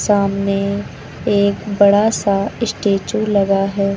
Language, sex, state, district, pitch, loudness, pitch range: Hindi, female, Uttar Pradesh, Lucknow, 200 Hz, -16 LUFS, 195-205 Hz